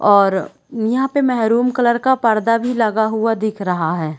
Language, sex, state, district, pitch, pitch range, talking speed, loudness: Hindi, female, Chhattisgarh, Raigarh, 225 Hz, 205-245 Hz, 185 wpm, -17 LUFS